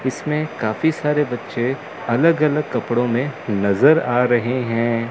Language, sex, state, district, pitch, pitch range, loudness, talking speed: Hindi, male, Chandigarh, Chandigarh, 125 Hz, 120-150 Hz, -19 LUFS, 140 wpm